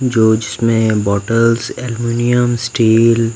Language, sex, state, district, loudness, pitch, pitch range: Hindi, male, Bihar, Katihar, -14 LUFS, 115 Hz, 110-120 Hz